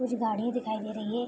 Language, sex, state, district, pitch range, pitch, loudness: Hindi, female, Bihar, Araria, 215-245 Hz, 225 Hz, -31 LUFS